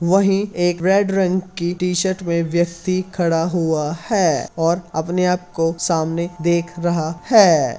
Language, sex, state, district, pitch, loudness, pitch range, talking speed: Hindi, female, Uttar Pradesh, Hamirpur, 175 Hz, -19 LUFS, 170-185 Hz, 155 wpm